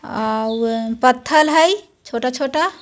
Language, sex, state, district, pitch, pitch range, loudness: Hindi, female, Bihar, Jahanabad, 265 Hz, 230-320 Hz, -17 LUFS